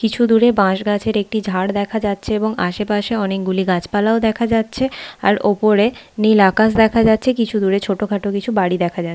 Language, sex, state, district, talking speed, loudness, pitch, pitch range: Bengali, female, West Bengal, Paschim Medinipur, 190 wpm, -17 LUFS, 210 Hz, 195-220 Hz